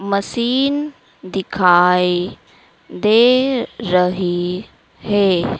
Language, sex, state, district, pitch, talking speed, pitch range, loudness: Hindi, female, Madhya Pradesh, Dhar, 195 Hz, 55 wpm, 180-235 Hz, -16 LUFS